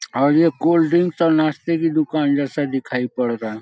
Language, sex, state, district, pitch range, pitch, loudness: Hindi, male, Bihar, Saharsa, 135-165 Hz, 150 Hz, -19 LUFS